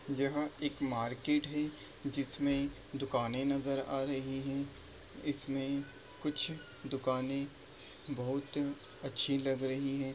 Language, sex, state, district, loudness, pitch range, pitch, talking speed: Hindi, male, Bihar, Jamui, -37 LUFS, 135-140 Hz, 140 Hz, 110 wpm